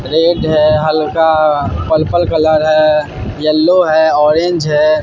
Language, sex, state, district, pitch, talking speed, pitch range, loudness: Hindi, male, Bihar, Katihar, 155 Hz, 120 wpm, 150-160 Hz, -12 LUFS